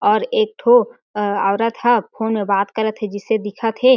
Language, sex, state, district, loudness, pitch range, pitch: Chhattisgarhi, female, Chhattisgarh, Jashpur, -18 LUFS, 205-240 Hz, 220 Hz